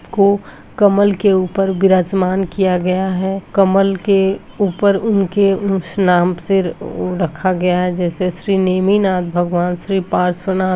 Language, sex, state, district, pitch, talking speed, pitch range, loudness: Hindi, female, Bihar, Jahanabad, 190 Hz, 140 wpm, 180-195 Hz, -16 LUFS